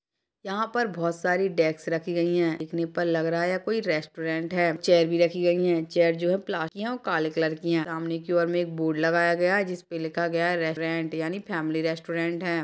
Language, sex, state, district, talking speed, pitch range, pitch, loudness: Hindi, female, Chhattisgarh, Sarguja, 240 wpm, 165-175 Hz, 170 Hz, -26 LUFS